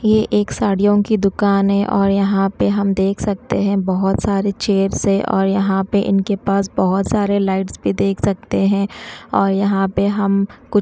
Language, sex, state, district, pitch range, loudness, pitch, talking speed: Hindi, female, Chhattisgarh, Raipur, 195-205 Hz, -17 LUFS, 195 Hz, 190 wpm